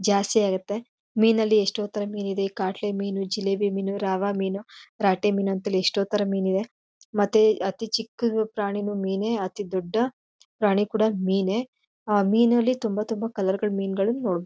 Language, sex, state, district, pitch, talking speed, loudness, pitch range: Kannada, female, Karnataka, Chamarajanagar, 205 Hz, 170 wpm, -25 LUFS, 195-220 Hz